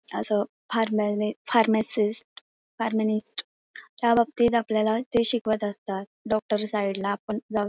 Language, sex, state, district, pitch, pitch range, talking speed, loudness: Marathi, female, Maharashtra, Pune, 220 Hz, 210-235 Hz, 115 wpm, -25 LUFS